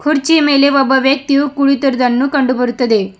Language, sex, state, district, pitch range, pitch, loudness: Kannada, male, Karnataka, Bidar, 255-280 Hz, 275 Hz, -12 LUFS